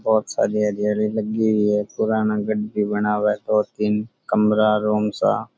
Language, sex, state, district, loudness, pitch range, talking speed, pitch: Rajasthani, male, Rajasthan, Churu, -21 LUFS, 105-110 Hz, 180 wpm, 105 Hz